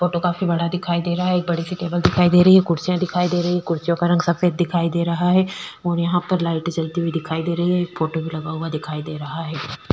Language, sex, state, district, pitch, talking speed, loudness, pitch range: Hindi, female, Chhattisgarh, Kabirdham, 175 Hz, 290 wpm, -20 LUFS, 165-180 Hz